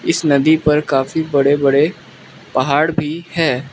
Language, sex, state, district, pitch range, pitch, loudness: Hindi, male, Mizoram, Aizawl, 140-160 Hz, 150 Hz, -16 LUFS